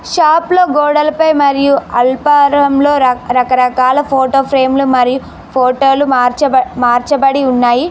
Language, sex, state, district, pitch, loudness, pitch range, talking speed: Telugu, female, Telangana, Mahabubabad, 270 Hz, -11 LUFS, 255-285 Hz, 120 wpm